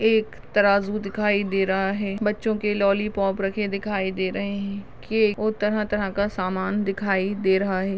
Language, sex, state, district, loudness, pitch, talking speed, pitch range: Hindi, female, Maharashtra, Chandrapur, -24 LUFS, 200 Hz, 180 wpm, 195-210 Hz